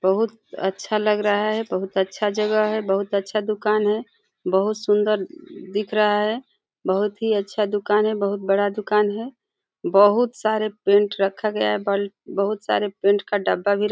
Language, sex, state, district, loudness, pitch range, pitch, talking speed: Hindi, female, Uttar Pradesh, Deoria, -22 LUFS, 200-215 Hz, 210 Hz, 180 wpm